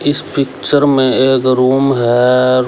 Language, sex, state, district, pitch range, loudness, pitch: Hindi, male, Haryana, Rohtak, 125-135 Hz, -12 LUFS, 130 Hz